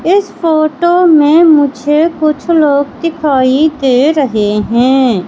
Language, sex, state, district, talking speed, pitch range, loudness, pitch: Hindi, female, Madhya Pradesh, Katni, 115 wpm, 260-325 Hz, -10 LUFS, 295 Hz